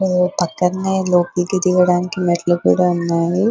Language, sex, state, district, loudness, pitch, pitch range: Telugu, female, Telangana, Nalgonda, -17 LUFS, 180 Hz, 175-185 Hz